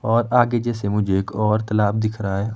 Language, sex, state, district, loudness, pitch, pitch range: Hindi, male, Himachal Pradesh, Shimla, -20 LUFS, 110 Hz, 100-115 Hz